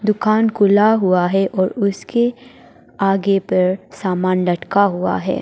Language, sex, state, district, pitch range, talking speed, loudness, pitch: Hindi, female, Arunachal Pradesh, Papum Pare, 185-215 Hz, 135 wpm, -17 LUFS, 195 Hz